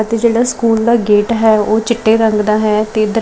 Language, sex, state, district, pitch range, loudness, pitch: Punjabi, female, Chandigarh, Chandigarh, 215-230 Hz, -12 LUFS, 220 Hz